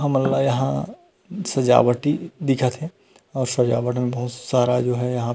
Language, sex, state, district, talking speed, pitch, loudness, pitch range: Chhattisgarhi, male, Chhattisgarh, Rajnandgaon, 170 wpm, 130 Hz, -21 LUFS, 125-145 Hz